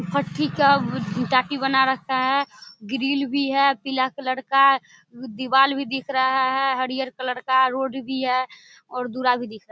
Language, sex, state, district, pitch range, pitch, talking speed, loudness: Maithili, female, Bihar, Samastipur, 250-270 Hz, 260 Hz, 175 wpm, -22 LUFS